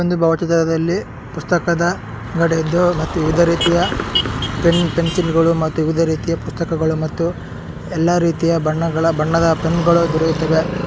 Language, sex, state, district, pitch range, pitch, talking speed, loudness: Kannada, male, Karnataka, Shimoga, 160-170 Hz, 165 Hz, 125 wpm, -17 LUFS